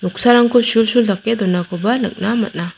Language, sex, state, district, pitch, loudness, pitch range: Garo, female, Meghalaya, South Garo Hills, 225 Hz, -15 LUFS, 185-235 Hz